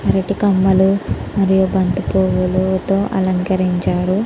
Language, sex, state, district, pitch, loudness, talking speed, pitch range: Telugu, female, Andhra Pradesh, Chittoor, 190 Hz, -16 LUFS, 85 wpm, 185-195 Hz